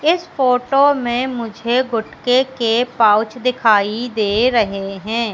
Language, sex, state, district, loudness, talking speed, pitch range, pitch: Hindi, female, Madhya Pradesh, Katni, -17 LUFS, 125 wpm, 220-255 Hz, 240 Hz